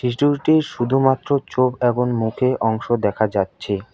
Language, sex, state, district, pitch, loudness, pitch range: Bengali, male, West Bengal, Alipurduar, 125 Hz, -19 LUFS, 110-135 Hz